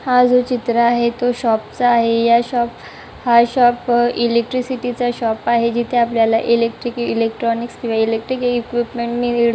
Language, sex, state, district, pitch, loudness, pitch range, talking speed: Marathi, male, Maharashtra, Chandrapur, 235 Hz, -17 LUFS, 235-245 Hz, 145 wpm